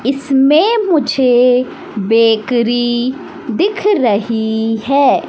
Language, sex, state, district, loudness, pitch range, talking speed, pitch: Hindi, female, Madhya Pradesh, Katni, -13 LUFS, 230-280 Hz, 70 wpm, 250 Hz